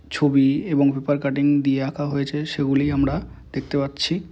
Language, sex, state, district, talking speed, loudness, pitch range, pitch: Bengali, male, West Bengal, Malda, 150 wpm, -21 LUFS, 140-145 Hz, 140 Hz